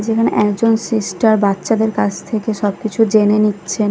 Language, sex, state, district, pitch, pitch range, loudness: Bengali, female, Odisha, Khordha, 215 Hz, 205-225 Hz, -16 LUFS